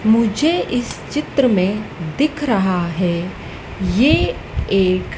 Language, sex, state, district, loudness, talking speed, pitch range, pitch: Hindi, female, Madhya Pradesh, Dhar, -18 LUFS, 105 wpm, 185-250 Hz, 210 Hz